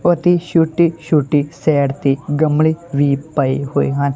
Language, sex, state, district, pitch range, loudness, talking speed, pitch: Punjabi, male, Punjab, Kapurthala, 140-165 Hz, -16 LUFS, 130 wpm, 150 Hz